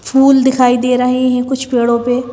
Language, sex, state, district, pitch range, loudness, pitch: Hindi, female, Madhya Pradesh, Bhopal, 245-265 Hz, -12 LUFS, 250 Hz